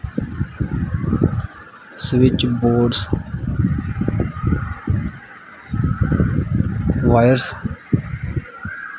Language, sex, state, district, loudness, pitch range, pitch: Punjabi, male, Punjab, Kapurthala, -20 LUFS, 100-125 Hz, 120 Hz